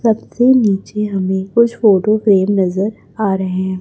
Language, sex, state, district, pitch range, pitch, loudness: Hindi, male, Chhattisgarh, Raipur, 190-220 Hz, 200 Hz, -15 LUFS